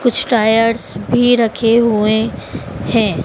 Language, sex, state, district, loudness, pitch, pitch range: Hindi, female, Madhya Pradesh, Dhar, -14 LUFS, 230 Hz, 220-240 Hz